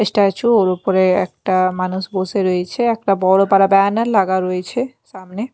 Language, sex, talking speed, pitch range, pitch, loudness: Bengali, female, 150 wpm, 185-210 Hz, 195 Hz, -16 LUFS